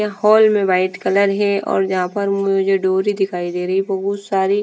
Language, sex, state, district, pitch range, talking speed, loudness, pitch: Hindi, female, Punjab, Fazilka, 190-200 Hz, 235 wpm, -17 LUFS, 195 Hz